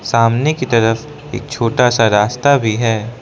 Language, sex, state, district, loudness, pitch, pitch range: Hindi, male, Arunachal Pradesh, Lower Dibang Valley, -14 LUFS, 115 Hz, 115-130 Hz